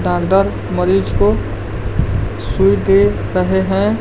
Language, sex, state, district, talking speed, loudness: Hindi, male, Bihar, West Champaran, 105 wpm, -16 LUFS